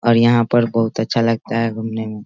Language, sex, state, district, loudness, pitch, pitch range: Hindi, male, Bihar, Sitamarhi, -17 LUFS, 115 Hz, 110-115 Hz